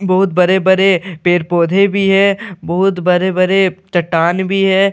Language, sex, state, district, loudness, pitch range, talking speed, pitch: Hindi, male, Bihar, Katihar, -13 LUFS, 175-195 Hz, 135 wpm, 185 Hz